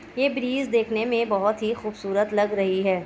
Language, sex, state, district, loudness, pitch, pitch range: Hindi, female, Bihar, Kishanganj, -24 LUFS, 215 Hz, 200-235 Hz